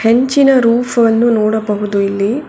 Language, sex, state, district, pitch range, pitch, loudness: Kannada, female, Karnataka, Bangalore, 210-245 Hz, 230 Hz, -12 LUFS